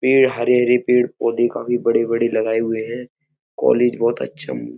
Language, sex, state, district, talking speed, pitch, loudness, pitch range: Hindi, male, Uttar Pradesh, Etah, 190 wpm, 120 Hz, -18 LUFS, 115-125 Hz